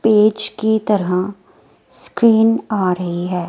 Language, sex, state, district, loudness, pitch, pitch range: Hindi, female, Himachal Pradesh, Shimla, -16 LUFS, 210 Hz, 180-220 Hz